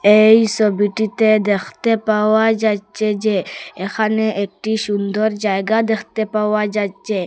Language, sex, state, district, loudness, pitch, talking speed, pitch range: Bengali, female, Assam, Hailakandi, -17 LUFS, 215 Hz, 105 wpm, 205-220 Hz